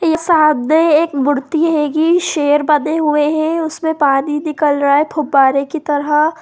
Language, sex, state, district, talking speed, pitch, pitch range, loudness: Hindi, female, Bihar, Sitamarhi, 160 wpm, 305 Hz, 290-320 Hz, -14 LUFS